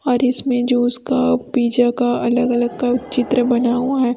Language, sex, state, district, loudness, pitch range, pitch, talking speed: Hindi, female, Chhattisgarh, Raipur, -17 LUFS, 240-250 Hz, 245 Hz, 185 wpm